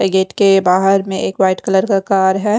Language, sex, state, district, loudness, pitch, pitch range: Hindi, female, Odisha, Khordha, -14 LUFS, 195 Hz, 190-195 Hz